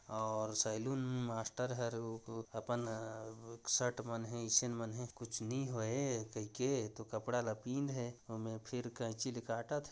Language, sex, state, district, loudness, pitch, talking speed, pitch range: Chhattisgarhi, male, Chhattisgarh, Jashpur, -40 LUFS, 115 Hz, 150 wpm, 110-125 Hz